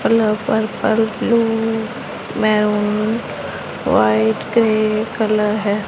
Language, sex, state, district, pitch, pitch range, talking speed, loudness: Hindi, female, Punjab, Pathankot, 215 Hz, 210-225 Hz, 80 wpm, -18 LUFS